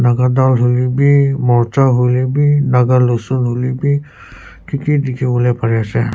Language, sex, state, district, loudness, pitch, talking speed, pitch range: Nagamese, male, Nagaland, Kohima, -14 LUFS, 125 Hz, 115 wpm, 120-135 Hz